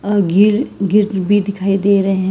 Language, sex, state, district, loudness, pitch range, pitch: Hindi, female, Karnataka, Bangalore, -14 LUFS, 195-205 Hz, 200 Hz